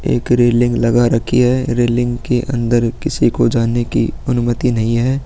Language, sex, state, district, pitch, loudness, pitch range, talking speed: Hindi, male, Chhattisgarh, Sukma, 120 Hz, -15 LUFS, 120-125 Hz, 170 wpm